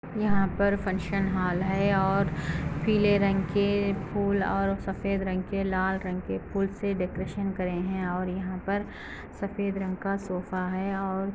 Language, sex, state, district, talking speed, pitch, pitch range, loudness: Hindi, female, Andhra Pradesh, Anantapur, 165 wpm, 195 Hz, 185-200 Hz, -28 LUFS